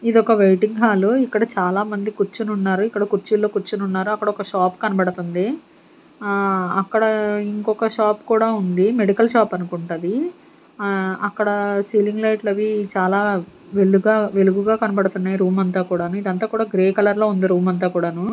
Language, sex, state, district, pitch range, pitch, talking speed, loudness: Telugu, female, Andhra Pradesh, Sri Satya Sai, 190-215 Hz, 205 Hz, 150 wpm, -19 LUFS